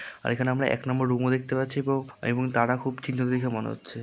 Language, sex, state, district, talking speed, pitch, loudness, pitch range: Bengali, male, West Bengal, Jalpaiguri, 240 wpm, 130 Hz, -27 LUFS, 125-130 Hz